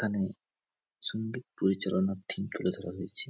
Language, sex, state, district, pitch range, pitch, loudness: Bengali, male, West Bengal, Jhargram, 95-110 Hz, 100 Hz, -33 LUFS